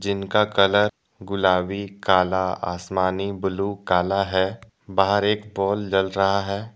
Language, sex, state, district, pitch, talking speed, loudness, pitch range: Hindi, male, Jharkhand, Deoghar, 100 Hz, 125 wpm, -22 LUFS, 95-100 Hz